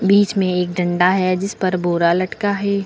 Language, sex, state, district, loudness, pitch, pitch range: Hindi, female, Uttar Pradesh, Lucknow, -18 LUFS, 185 Hz, 180-200 Hz